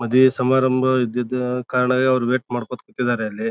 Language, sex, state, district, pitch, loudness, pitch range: Kannada, male, Karnataka, Bijapur, 125 Hz, -20 LUFS, 120-130 Hz